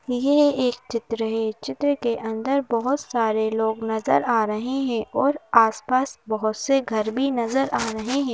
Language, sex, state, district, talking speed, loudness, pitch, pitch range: Hindi, female, Madhya Pradesh, Bhopal, 170 wpm, -23 LUFS, 235 Hz, 220-270 Hz